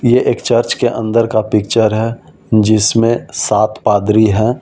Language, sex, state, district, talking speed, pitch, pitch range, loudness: Hindi, male, Delhi, New Delhi, 155 wpm, 110 Hz, 105-115 Hz, -13 LUFS